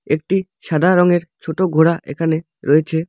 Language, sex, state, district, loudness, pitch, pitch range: Bengali, male, West Bengal, Alipurduar, -17 LUFS, 165 Hz, 160-180 Hz